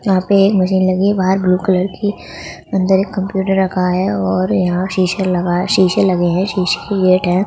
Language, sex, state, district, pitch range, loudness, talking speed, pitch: Hindi, female, Uttar Pradesh, Budaun, 180-195 Hz, -15 LUFS, 200 wpm, 185 Hz